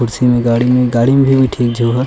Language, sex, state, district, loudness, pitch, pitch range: Chhattisgarhi, male, Chhattisgarh, Sukma, -12 LUFS, 125 Hz, 120-125 Hz